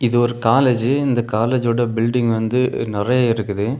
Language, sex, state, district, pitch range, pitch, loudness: Tamil, male, Tamil Nadu, Kanyakumari, 115-125 Hz, 120 Hz, -18 LUFS